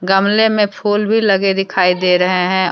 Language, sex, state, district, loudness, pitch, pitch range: Hindi, female, Jharkhand, Deoghar, -14 LUFS, 195 Hz, 185-205 Hz